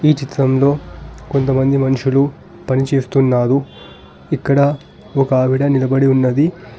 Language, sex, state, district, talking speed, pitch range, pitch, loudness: Telugu, male, Telangana, Hyderabad, 90 wpm, 130-140 Hz, 135 Hz, -16 LUFS